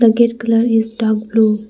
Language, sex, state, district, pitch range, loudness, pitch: English, female, Arunachal Pradesh, Lower Dibang Valley, 220-230 Hz, -15 LUFS, 225 Hz